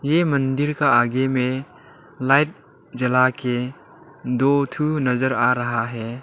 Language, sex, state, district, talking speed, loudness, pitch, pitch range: Hindi, male, Arunachal Pradesh, Lower Dibang Valley, 135 wpm, -20 LUFS, 130 Hz, 125-140 Hz